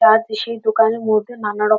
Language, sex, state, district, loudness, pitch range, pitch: Bengali, female, West Bengal, Dakshin Dinajpur, -18 LUFS, 215-225 Hz, 220 Hz